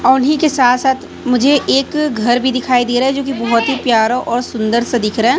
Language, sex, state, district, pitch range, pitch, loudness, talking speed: Hindi, female, Chhattisgarh, Raipur, 240-270 Hz, 250 Hz, -14 LUFS, 265 wpm